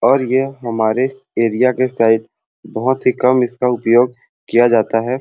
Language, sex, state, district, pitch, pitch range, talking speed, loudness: Sadri, male, Chhattisgarh, Jashpur, 125 Hz, 115-130 Hz, 160 wpm, -16 LUFS